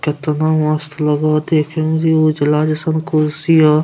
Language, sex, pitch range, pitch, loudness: Angika, male, 150-155 Hz, 155 Hz, -15 LUFS